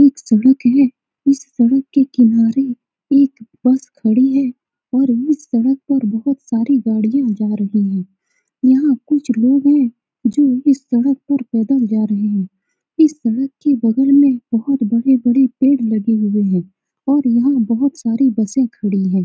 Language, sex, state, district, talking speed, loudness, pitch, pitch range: Hindi, female, Bihar, Saran, 160 wpm, -15 LUFS, 255 Hz, 225-275 Hz